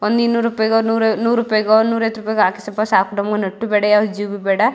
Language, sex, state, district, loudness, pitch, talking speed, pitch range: Kannada, female, Karnataka, Mysore, -17 LUFS, 215 Hz, 190 wpm, 205-225 Hz